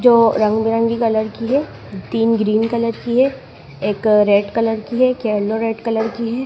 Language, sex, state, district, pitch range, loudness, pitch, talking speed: Hindi, female, Madhya Pradesh, Dhar, 215-235 Hz, -17 LUFS, 225 Hz, 195 wpm